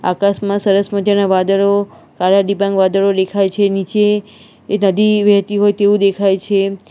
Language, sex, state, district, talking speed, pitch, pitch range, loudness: Gujarati, female, Gujarat, Valsad, 150 wpm, 200 Hz, 195-205 Hz, -14 LUFS